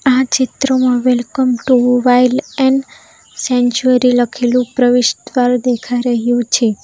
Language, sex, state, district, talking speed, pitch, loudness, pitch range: Gujarati, female, Gujarat, Valsad, 105 wpm, 250 Hz, -14 LUFS, 245-255 Hz